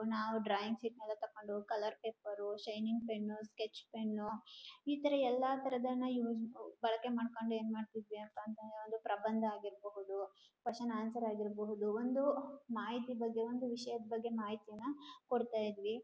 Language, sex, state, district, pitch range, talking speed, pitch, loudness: Kannada, female, Karnataka, Chamarajanagar, 215-235 Hz, 130 wpm, 225 Hz, -41 LUFS